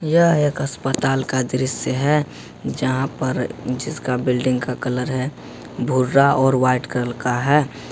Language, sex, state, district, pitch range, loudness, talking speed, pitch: Hindi, male, Jharkhand, Ranchi, 125-140 Hz, -20 LUFS, 145 wpm, 130 Hz